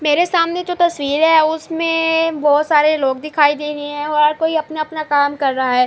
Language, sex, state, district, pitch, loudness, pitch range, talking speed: Urdu, female, Andhra Pradesh, Anantapur, 305 Hz, -16 LUFS, 290-325 Hz, 215 wpm